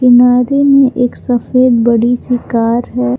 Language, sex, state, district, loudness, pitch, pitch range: Hindi, female, Jharkhand, Palamu, -11 LUFS, 245 Hz, 235-250 Hz